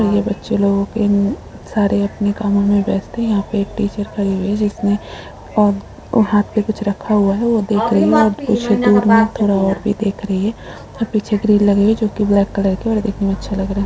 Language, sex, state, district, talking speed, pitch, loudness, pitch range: Hindi, female, Jharkhand, Sahebganj, 240 wpm, 205 Hz, -16 LUFS, 200-215 Hz